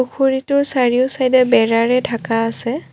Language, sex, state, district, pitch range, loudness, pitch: Assamese, female, Assam, Kamrup Metropolitan, 235-265 Hz, -16 LUFS, 255 Hz